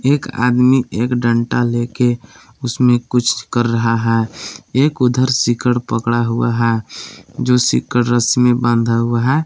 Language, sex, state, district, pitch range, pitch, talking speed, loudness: Hindi, male, Jharkhand, Palamu, 115-125 Hz, 120 Hz, 150 wpm, -16 LUFS